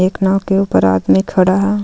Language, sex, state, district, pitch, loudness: Hindi, female, Jharkhand, Ranchi, 190 Hz, -14 LUFS